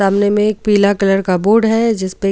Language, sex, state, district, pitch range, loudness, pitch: Hindi, female, Goa, North and South Goa, 195-215 Hz, -14 LUFS, 205 Hz